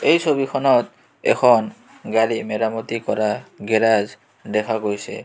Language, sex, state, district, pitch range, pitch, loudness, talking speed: Assamese, male, Assam, Kamrup Metropolitan, 105-120 Hz, 110 Hz, -20 LUFS, 105 wpm